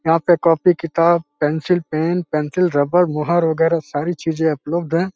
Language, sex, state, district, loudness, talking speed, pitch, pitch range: Hindi, male, Uttar Pradesh, Deoria, -18 LUFS, 160 wpm, 165 Hz, 155-175 Hz